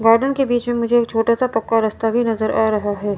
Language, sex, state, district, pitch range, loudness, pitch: Hindi, female, Chandigarh, Chandigarh, 220-240 Hz, -18 LUFS, 225 Hz